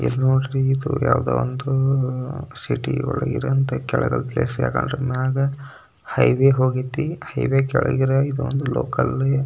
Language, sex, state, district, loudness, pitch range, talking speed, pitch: Kannada, male, Karnataka, Belgaum, -21 LUFS, 130-135 Hz, 115 wpm, 135 Hz